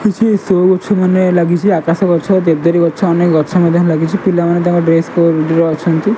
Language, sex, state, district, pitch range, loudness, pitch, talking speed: Odia, male, Odisha, Malkangiri, 165-185 Hz, -12 LUFS, 175 Hz, 155 wpm